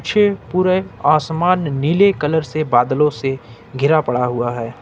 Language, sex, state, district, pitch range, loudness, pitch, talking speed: Hindi, male, Jharkhand, Ranchi, 125-175 Hz, -17 LUFS, 150 Hz, 125 wpm